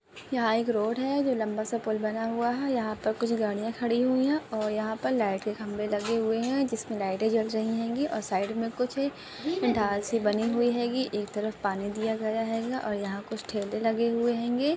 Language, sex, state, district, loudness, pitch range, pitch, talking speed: Hindi, female, Maharashtra, Dhule, -29 LUFS, 215-240 Hz, 225 Hz, 215 wpm